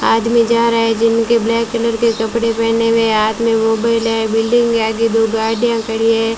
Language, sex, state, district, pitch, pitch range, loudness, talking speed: Hindi, female, Rajasthan, Bikaner, 230 Hz, 225-230 Hz, -14 LUFS, 205 wpm